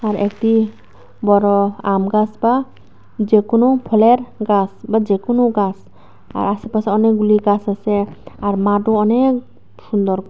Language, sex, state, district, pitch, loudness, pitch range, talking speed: Bengali, female, Tripura, West Tripura, 210 Hz, -16 LUFS, 200-225 Hz, 130 wpm